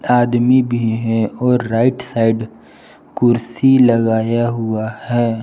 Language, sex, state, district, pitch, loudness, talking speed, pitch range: Hindi, male, Jharkhand, Palamu, 115 Hz, -16 LUFS, 110 wpm, 115-125 Hz